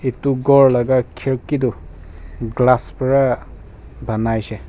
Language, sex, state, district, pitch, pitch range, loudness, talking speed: Nagamese, male, Nagaland, Kohima, 120 Hz, 105-130 Hz, -17 LUFS, 115 wpm